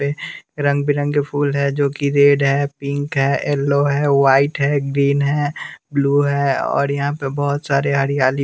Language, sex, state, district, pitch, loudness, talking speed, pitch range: Hindi, male, Bihar, West Champaran, 140 Hz, -18 LUFS, 170 wpm, 140-145 Hz